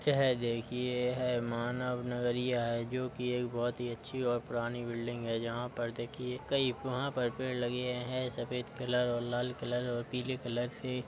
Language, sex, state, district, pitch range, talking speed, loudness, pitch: Hindi, male, Uttar Pradesh, Budaun, 120-125 Hz, 195 wpm, -35 LUFS, 125 Hz